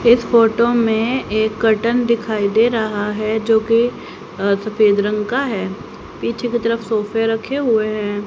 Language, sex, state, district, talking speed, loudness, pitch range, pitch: Hindi, female, Haryana, Rohtak, 160 wpm, -17 LUFS, 215-235 Hz, 225 Hz